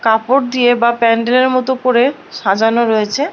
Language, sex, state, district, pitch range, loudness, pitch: Bengali, female, West Bengal, Paschim Medinipur, 225-255 Hz, -13 LUFS, 245 Hz